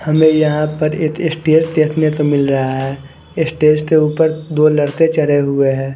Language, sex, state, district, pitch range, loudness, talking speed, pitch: Hindi, male, Haryana, Charkhi Dadri, 145-160 Hz, -14 LUFS, 190 wpm, 155 Hz